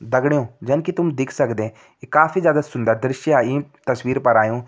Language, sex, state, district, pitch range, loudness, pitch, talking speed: Kumaoni, male, Uttarakhand, Tehri Garhwal, 120-150 Hz, -19 LUFS, 130 Hz, 180 wpm